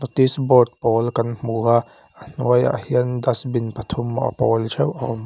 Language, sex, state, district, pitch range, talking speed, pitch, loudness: Mizo, male, Mizoram, Aizawl, 115-130 Hz, 180 wpm, 120 Hz, -20 LUFS